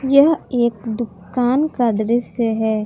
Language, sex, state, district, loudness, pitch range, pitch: Hindi, female, Jharkhand, Palamu, -18 LUFS, 220-260 Hz, 235 Hz